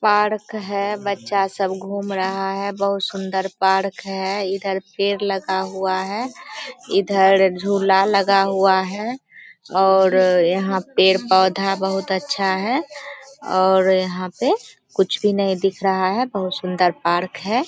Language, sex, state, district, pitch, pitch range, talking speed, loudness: Hindi, female, Bihar, Begusarai, 195 Hz, 190-200 Hz, 135 wpm, -19 LUFS